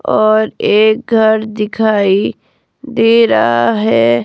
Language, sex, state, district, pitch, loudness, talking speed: Hindi, female, Himachal Pradesh, Shimla, 215 Hz, -12 LUFS, 100 wpm